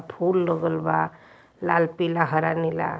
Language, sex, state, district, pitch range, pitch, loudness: Hindi, male, Uttar Pradesh, Varanasi, 100-170 Hz, 165 Hz, -24 LUFS